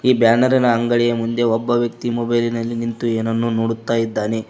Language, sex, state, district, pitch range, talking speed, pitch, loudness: Kannada, male, Karnataka, Koppal, 115-120 Hz, 145 wpm, 115 Hz, -18 LUFS